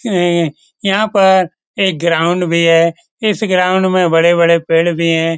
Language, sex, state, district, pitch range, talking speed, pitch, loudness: Hindi, male, Bihar, Lakhisarai, 165-190 Hz, 155 wpm, 175 Hz, -13 LUFS